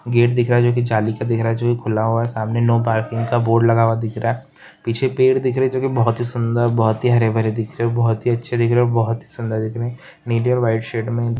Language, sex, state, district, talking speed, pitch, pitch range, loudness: Hindi, male, West Bengal, Jalpaiguri, 310 wpm, 115 Hz, 115-120 Hz, -18 LUFS